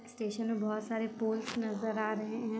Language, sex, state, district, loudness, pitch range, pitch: Hindi, female, Andhra Pradesh, Chittoor, -35 LUFS, 215-225 Hz, 220 Hz